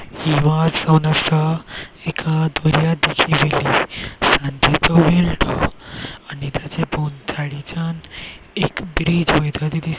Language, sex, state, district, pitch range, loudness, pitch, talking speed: Konkani, male, Goa, North and South Goa, 150-165 Hz, -18 LUFS, 160 Hz, 100 wpm